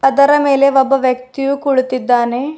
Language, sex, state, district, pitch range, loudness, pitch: Kannada, female, Karnataka, Bidar, 255-275 Hz, -13 LUFS, 270 Hz